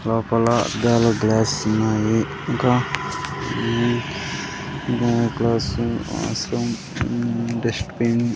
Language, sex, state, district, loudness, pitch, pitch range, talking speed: Telugu, male, Andhra Pradesh, Sri Satya Sai, -21 LUFS, 115 Hz, 110-120 Hz, 65 wpm